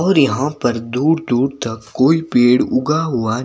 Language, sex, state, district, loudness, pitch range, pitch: Hindi, male, Himachal Pradesh, Shimla, -16 LUFS, 120-150 Hz, 130 Hz